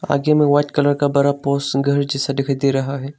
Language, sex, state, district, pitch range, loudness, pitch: Hindi, male, Arunachal Pradesh, Longding, 140-145 Hz, -18 LUFS, 140 Hz